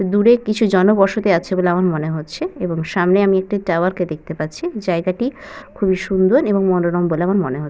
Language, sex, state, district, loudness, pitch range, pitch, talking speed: Bengali, female, West Bengal, Purulia, -17 LUFS, 175-205 Hz, 185 Hz, 210 wpm